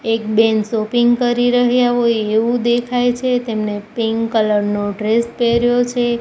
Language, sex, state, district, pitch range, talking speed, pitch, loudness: Gujarati, female, Gujarat, Gandhinagar, 220-245 Hz, 155 wpm, 235 Hz, -16 LUFS